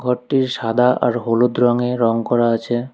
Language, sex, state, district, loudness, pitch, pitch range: Bengali, male, West Bengal, Alipurduar, -17 LUFS, 120 Hz, 115-125 Hz